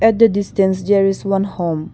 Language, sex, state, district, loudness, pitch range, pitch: English, female, Arunachal Pradesh, Longding, -16 LUFS, 190-200 Hz, 195 Hz